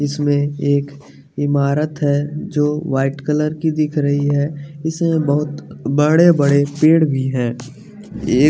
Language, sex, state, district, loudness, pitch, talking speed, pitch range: Hindi, male, Bihar, West Champaran, -17 LUFS, 145 Hz, 140 wpm, 140-155 Hz